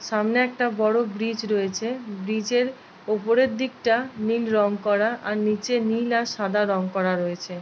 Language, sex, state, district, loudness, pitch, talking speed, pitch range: Bengali, female, West Bengal, Jalpaiguri, -24 LUFS, 220 Hz, 165 wpm, 205-235 Hz